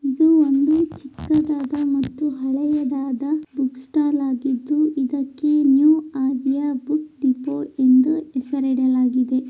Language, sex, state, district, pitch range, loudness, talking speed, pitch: Kannada, female, Karnataka, Raichur, 265-300 Hz, -20 LUFS, 95 wpm, 280 Hz